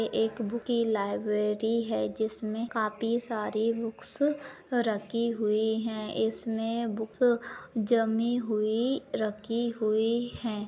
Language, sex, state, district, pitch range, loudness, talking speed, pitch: Hindi, female, Maharashtra, Sindhudurg, 215-235 Hz, -30 LUFS, 105 wpm, 225 Hz